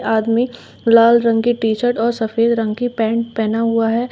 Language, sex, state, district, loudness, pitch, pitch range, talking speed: Hindi, female, Uttar Pradesh, Shamli, -16 LUFS, 230 Hz, 225-235 Hz, 190 wpm